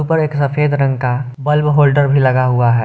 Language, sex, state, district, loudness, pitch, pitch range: Hindi, male, Jharkhand, Garhwa, -14 LUFS, 140 Hz, 130-150 Hz